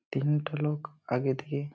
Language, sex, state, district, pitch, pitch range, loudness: Bengali, male, West Bengal, Malda, 145 Hz, 135-150 Hz, -31 LUFS